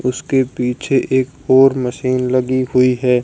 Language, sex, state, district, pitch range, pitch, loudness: Hindi, male, Haryana, Jhajjar, 125-130 Hz, 130 Hz, -16 LUFS